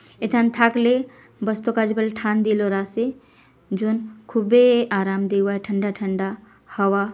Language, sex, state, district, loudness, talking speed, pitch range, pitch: Halbi, female, Chhattisgarh, Bastar, -21 LUFS, 145 wpm, 200-235 Hz, 220 Hz